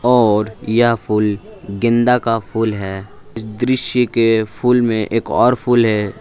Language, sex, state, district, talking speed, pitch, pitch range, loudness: Hindi, male, Jharkhand, Palamu, 145 wpm, 115 Hz, 105-120 Hz, -16 LUFS